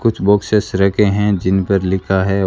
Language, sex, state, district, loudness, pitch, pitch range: Hindi, male, Rajasthan, Bikaner, -15 LUFS, 100 Hz, 95-105 Hz